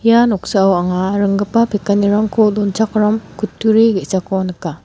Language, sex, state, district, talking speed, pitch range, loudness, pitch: Garo, female, Meghalaya, West Garo Hills, 110 wpm, 190-220 Hz, -15 LUFS, 205 Hz